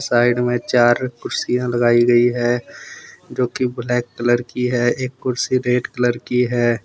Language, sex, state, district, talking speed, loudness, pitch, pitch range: Hindi, male, Jharkhand, Deoghar, 165 wpm, -18 LUFS, 120 Hz, 120-125 Hz